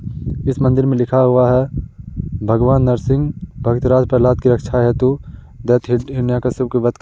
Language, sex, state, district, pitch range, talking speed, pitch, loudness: Hindi, male, Uttar Pradesh, Muzaffarnagar, 125-130 Hz, 155 wpm, 125 Hz, -16 LUFS